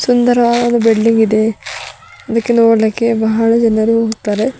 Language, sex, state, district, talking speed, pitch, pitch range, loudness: Kannada, female, Karnataka, Bidar, 105 wpm, 230 Hz, 220-235 Hz, -13 LUFS